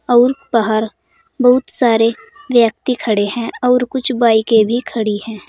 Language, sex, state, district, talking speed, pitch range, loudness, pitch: Hindi, female, Uttar Pradesh, Saharanpur, 140 wpm, 225-255 Hz, -15 LUFS, 235 Hz